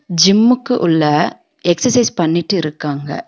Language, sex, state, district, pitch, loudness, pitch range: Tamil, female, Tamil Nadu, Nilgiris, 170 Hz, -14 LUFS, 155-215 Hz